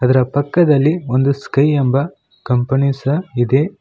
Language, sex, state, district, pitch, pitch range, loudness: Kannada, male, Karnataka, Koppal, 140 Hz, 130-150 Hz, -16 LUFS